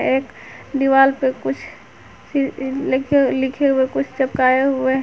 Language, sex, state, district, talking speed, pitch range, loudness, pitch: Hindi, female, Jharkhand, Garhwa, 120 wpm, 260-275 Hz, -18 LUFS, 265 Hz